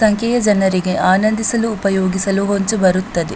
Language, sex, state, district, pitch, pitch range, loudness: Kannada, female, Karnataka, Dakshina Kannada, 195 Hz, 190-220 Hz, -16 LUFS